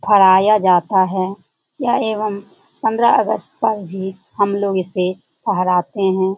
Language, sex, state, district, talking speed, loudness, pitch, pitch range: Hindi, female, Bihar, Jamui, 150 wpm, -17 LUFS, 190 Hz, 185-205 Hz